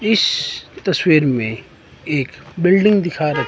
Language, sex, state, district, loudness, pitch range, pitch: Hindi, male, Himachal Pradesh, Shimla, -17 LUFS, 140-190 Hz, 165 Hz